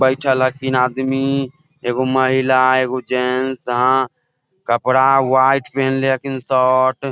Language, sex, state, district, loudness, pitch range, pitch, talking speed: Maithili, male, Bihar, Samastipur, -17 LUFS, 130-135 Hz, 130 Hz, 120 wpm